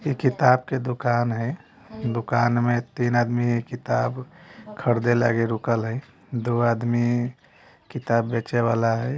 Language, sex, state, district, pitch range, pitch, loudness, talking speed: Bajjika, male, Bihar, Vaishali, 115-125 Hz, 120 Hz, -23 LUFS, 130 wpm